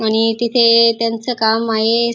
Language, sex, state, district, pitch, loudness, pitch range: Marathi, female, Maharashtra, Dhule, 230 Hz, -14 LUFS, 225-235 Hz